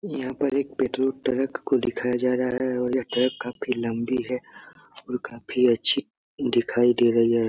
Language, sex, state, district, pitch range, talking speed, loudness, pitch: Hindi, male, Bihar, Supaul, 120-130 Hz, 185 wpm, -24 LUFS, 125 Hz